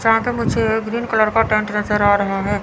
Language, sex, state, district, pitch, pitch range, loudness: Hindi, female, Chandigarh, Chandigarh, 215 Hz, 205-225 Hz, -17 LUFS